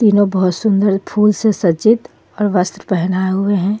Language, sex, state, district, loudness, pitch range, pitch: Hindi, female, Jharkhand, Ranchi, -15 LUFS, 190-210 Hz, 200 Hz